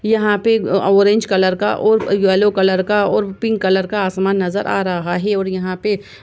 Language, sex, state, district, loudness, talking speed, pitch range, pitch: Hindi, female, Chhattisgarh, Sukma, -16 LUFS, 210 wpm, 190-210 Hz, 195 Hz